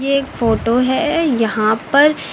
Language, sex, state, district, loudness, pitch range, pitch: Hindi, female, Uttar Pradesh, Lucknow, -15 LUFS, 225-275 Hz, 255 Hz